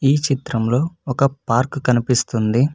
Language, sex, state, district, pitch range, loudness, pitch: Telugu, male, Karnataka, Bangalore, 120-140 Hz, -19 LUFS, 130 Hz